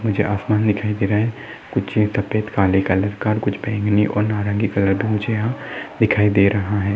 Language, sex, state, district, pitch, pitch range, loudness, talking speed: Hindi, male, Chhattisgarh, Sarguja, 105 Hz, 100-110 Hz, -19 LUFS, 200 wpm